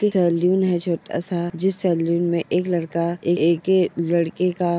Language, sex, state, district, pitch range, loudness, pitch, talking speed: Hindi, female, Bihar, Purnia, 170-180 Hz, -21 LUFS, 175 Hz, 175 wpm